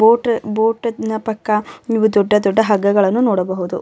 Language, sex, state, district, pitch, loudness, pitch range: Kannada, female, Karnataka, Bellary, 220 Hz, -16 LUFS, 200-225 Hz